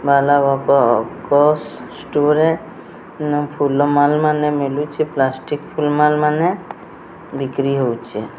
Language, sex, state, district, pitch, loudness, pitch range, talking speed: Odia, male, Odisha, Sambalpur, 145 Hz, -17 LUFS, 135-150 Hz, 95 wpm